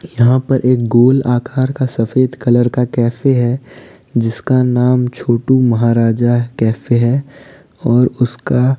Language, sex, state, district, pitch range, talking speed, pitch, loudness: Hindi, male, Odisha, Nuapada, 120-130 Hz, 135 wpm, 125 Hz, -14 LUFS